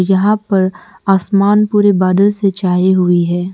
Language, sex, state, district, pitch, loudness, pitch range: Hindi, female, Arunachal Pradesh, Lower Dibang Valley, 190 Hz, -13 LUFS, 185-205 Hz